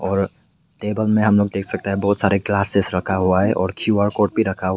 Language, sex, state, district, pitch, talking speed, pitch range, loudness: Hindi, male, Meghalaya, West Garo Hills, 100 Hz, 275 wpm, 95-105 Hz, -19 LUFS